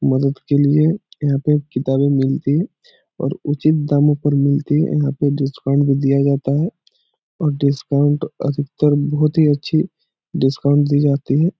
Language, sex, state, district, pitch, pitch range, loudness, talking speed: Hindi, male, Bihar, Jahanabad, 145 Hz, 140-150 Hz, -17 LUFS, 160 wpm